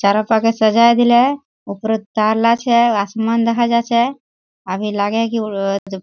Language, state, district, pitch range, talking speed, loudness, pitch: Surjapuri, Bihar, Kishanganj, 210-235 Hz, 150 wpm, -16 LUFS, 225 Hz